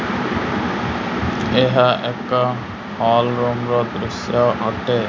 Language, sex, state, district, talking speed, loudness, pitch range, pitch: Odia, male, Odisha, Malkangiri, 70 wpm, -19 LUFS, 120-125 Hz, 120 Hz